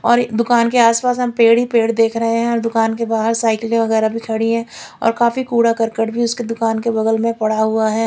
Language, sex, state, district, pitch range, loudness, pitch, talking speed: Hindi, female, Chandigarh, Chandigarh, 225-235 Hz, -16 LUFS, 230 Hz, 260 wpm